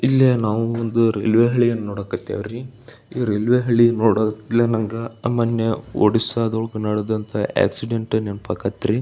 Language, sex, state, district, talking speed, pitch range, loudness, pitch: Kannada, male, Karnataka, Belgaum, 135 wpm, 110-120 Hz, -20 LUFS, 115 Hz